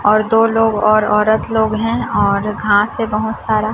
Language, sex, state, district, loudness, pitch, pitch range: Hindi, male, Chhattisgarh, Raipur, -15 LUFS, 215 Hz, 210-225 Hz